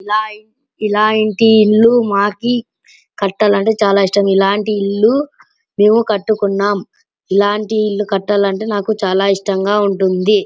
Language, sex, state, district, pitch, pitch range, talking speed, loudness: Telugu, male, Andhra Pradesh, Anantapur, 210 Hz, 200-215 Hz, 105 wpm, -14 LUFS